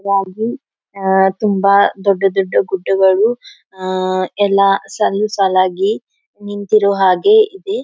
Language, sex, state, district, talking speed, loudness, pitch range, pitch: Kannada, female, Karnataka, Belgaum, 105 wpm, -14 LUFS, 190-215 Hz, 200 Hz